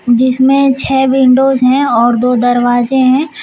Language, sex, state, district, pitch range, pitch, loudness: Hindi, female, Uttar Pradesh, Shamli, 245-270 Hz, 255 Hz, -10 LUFS